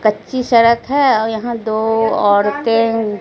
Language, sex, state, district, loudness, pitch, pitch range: Hindi, female, Bihar, Katihar, -15 LUFS, 225 Hz, 220-235 Hz